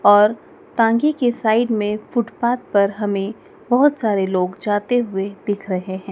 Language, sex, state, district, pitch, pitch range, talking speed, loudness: Hindi, female, Madhya Pradesh, Dhar, 210 Hz, 200-240 Hz, 155 wpm, -19 LUFS